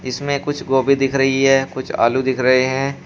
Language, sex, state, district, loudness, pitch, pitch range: Hindi, male, Uttar Pradesh, Shamli, -17 LUFS, 135 Hz, 130-135 Hz